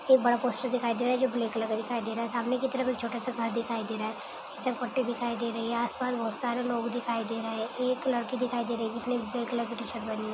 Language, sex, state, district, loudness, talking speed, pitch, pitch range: Hindi, female, Chhattisgarh, Kabirdham, -31 LUFS, 305 wpm, 235 Hz, 230-250 Hz